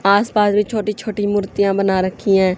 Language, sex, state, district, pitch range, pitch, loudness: Hindi, female, Haryana, Charkhi Dadri, 195-210 Hz, 200 Hz, -17 LUFS